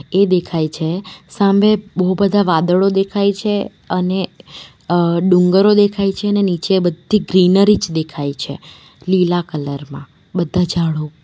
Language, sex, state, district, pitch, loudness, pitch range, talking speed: Gujarati, female, Gujarat, Valsad, 185 Hz, -16 LUFS, 165-200 Hz, 140 wpm